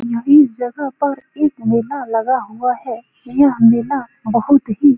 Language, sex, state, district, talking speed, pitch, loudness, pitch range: Hindi, female, Bihar, Saran, 155 wpm, 250 Hz, -16 LUFS, 235-280 Hz